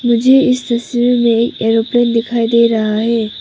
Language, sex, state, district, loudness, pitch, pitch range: Hindi, female, Arunachal Pradesh, Papum Pare, -13 LUFS, 235 Hz, 230-240 Hz